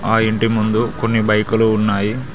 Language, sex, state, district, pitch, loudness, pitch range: Telugu, male, Telangana, Mahabubabad, 110 Hz, -16 LUFS, 105-115 Hz